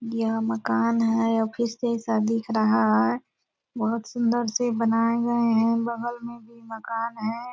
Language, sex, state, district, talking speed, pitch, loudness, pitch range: Hindi, female, Bihar, Purnia, 150 wpm, 230 Hz, -24 LUFS, 225-235 Hz